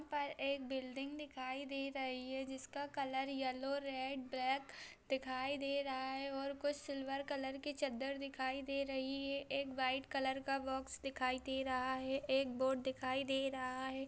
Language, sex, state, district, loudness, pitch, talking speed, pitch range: Hindi, female, Bihar, Darbhanga, -41 LUFS, 270 Hz, 185 wpm, 265-275 Hz